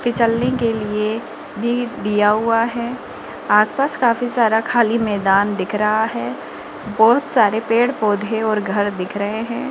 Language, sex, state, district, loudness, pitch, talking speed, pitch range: Hindi, female, Rajasthan, Jaipur, -18 LUFS, 225 Hz, 160 wpm, 210-240 Hz